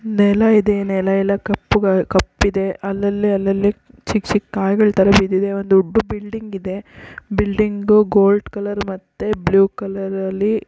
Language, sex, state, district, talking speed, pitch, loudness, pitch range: Kannada, female, Karnataka, Raichur, 130 wpm, 200 Hz, -17 LUFS, 195-210 Hz